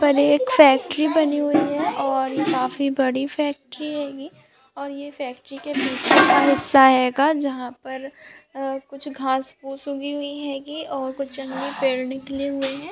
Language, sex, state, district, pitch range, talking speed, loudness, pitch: Hindi, female, Bihar, Araria, 270-290 Hz, 160 wpm, -20 LUFS, 275 Hz